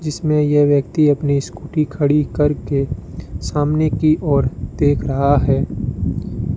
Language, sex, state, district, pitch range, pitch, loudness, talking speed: Hindi, male, Rajasthan, Bikaner, 140-150 Hz, 145 Hz, -18 LUFS, 120 wpm